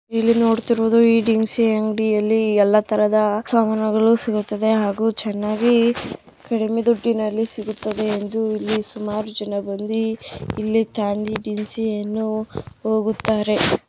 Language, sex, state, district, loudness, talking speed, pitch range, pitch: Kannada, female, Karnataka, Bijapur, -20 LUFS, 100 wpm, 210-225 Hz, 220 Hz